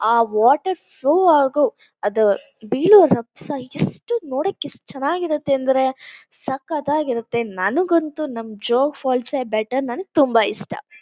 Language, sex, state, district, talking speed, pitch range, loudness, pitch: Kannada, female, Karnataka, Shimoga, 125 wpm, 235-315 Hz, -18 LUFS, 270 Hz